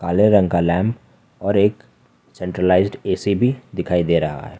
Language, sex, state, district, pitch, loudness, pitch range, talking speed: Hindi, male, Jharkhand, Ranchi, 95 Hz, -19 LUFS, 90-105 Hz, 170 wpm